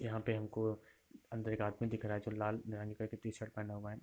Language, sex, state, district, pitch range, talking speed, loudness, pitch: Hindi, male, Chhattisgarh, Raigarh, 105-110 Hz, 250 wpm, -42 LUFS, 110 Hz